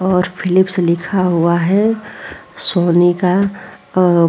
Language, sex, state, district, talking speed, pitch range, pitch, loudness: Hindi, female, Uttar Pradesh, Muzaffarnagar, 125 wpm, 175-190 Hz, 180 Hz, -15 LUFS